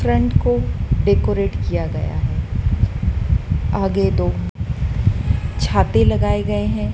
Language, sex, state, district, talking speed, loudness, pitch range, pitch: Hindi, female, Madhya Pradesh, Dhar, 105 wpm, -19 LUFS, 90-105 Hz, 100 Hz